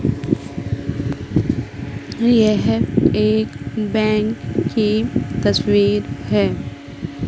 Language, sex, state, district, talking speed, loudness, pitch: Hindi, female, Madhya Pradesh, Katni, 50 wpm, -19 LUFS, 140 Hz